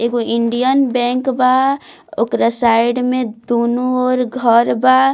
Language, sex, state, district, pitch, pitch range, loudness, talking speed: Bhojpuri, female, Bihar, Muzaffarpur, 250 Hz, 235-255 Hz, -15 LUFS, 130 wpm